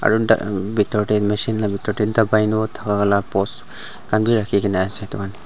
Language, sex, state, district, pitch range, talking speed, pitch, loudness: Nagamese, male, Nagaland, Dimapur, 100-110 Hz, 145 wpm, 105 Hz, -19 LUFS